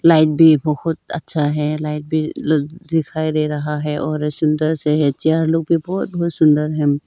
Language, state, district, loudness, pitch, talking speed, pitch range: Hindi, Arunachal Pradesh, Lower Dibang Valley, -18 LUFS, 155 Hz, 185 wpm, 150-160 Hz